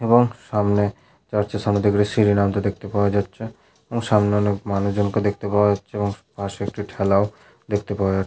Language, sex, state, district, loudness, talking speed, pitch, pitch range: Bengali, male, West Bengal, Paschim Medinipur, -21 LUFS, 180 wpm, 105 Hz, 100-105 Hz